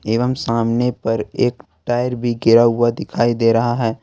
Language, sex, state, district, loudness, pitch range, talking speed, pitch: Hindi, male, Jharkhand, Ranchi, -17 LUFS, 115-120 Hz, 180 wpm, 120 Hz